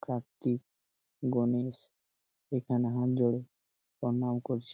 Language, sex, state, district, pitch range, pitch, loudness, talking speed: Bengali, male, West Bengal, Malda, 115-125 Hz, 120 Hz, -32 LUFS, 90 wpm